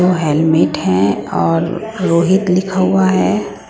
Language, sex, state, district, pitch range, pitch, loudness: Hindi, female, Punjab, Pathankot, 160-190 Hz, 175 Hz, -14 LUFS